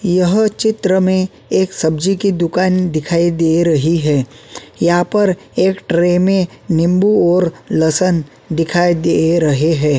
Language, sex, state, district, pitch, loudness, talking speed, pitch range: Hindi, male, Uttarakhand, Tehri Garhwal, 175 Hz, -14 LUFS, 140 wpm, 165-185 Hz